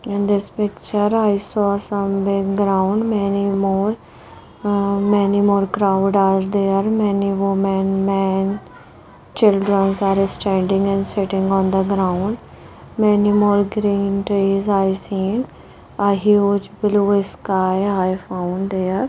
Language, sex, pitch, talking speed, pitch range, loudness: English, female, 200 Hz, 125 wpm, 195-205 Hz, -18 LUFS